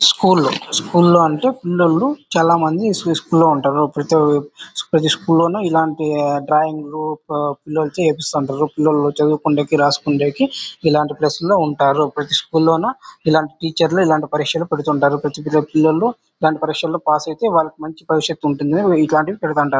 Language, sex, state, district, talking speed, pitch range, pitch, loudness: Telugu, male, Andhra Pradesh, Anantapur, 145 wpm, 150-165 Hz, 155 Hz, -17 LUFS